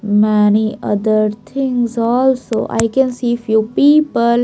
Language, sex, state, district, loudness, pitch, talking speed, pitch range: English, female, Maharashtra, Mumbai Suburban, -15 LUFS, 235 Hz, 120 wpm, 215-250 Hz